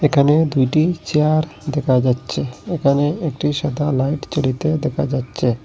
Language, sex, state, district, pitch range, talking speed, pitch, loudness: Bengali, male, Assam, Hailakandi, 130-155 Hz, 125 wpm, 145 Hz, -19 LUFS